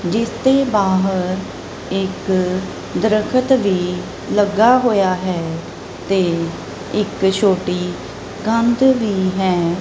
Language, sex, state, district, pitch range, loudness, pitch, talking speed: Punjabi, female, Punjab, Kapurthala, 185-220 Hz, -17 LUFS, 195 Hz, 90 wpm